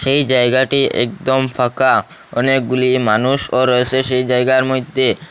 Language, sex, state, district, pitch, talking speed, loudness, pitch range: Bengali, male, Assam, Hailakandi, 130 Hz, 115 wpm, -15 LUFS, 125-135 Hz